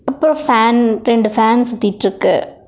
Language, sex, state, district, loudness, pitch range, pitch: Tamil, female, Tamil Nadu, Nilgiris, -14 LUFS, 220-245 Hz, 230 Hz